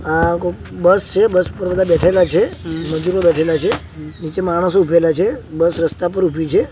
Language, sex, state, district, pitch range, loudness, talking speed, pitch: Gujarati, male, Gujarat, Gandhinagar, 160-180 Hz, -16 LUFS, 180 wpm, 170 Hz